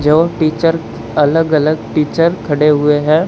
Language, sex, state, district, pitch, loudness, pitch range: Hindi, male, Haryana, Charkhi Dadri, 155 Hz, -13 LUFS, 150-165 Hz